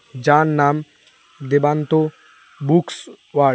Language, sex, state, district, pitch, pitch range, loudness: Bengali, male, West Bengal, Alipurduar, 145 Hz, 145-155 Hz, -18 LUFS